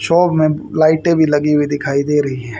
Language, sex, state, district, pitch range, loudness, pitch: Hindi, female, Haryana, Charkhi Dadri, 145-160 Hz, -14 LUFS, 150 Hz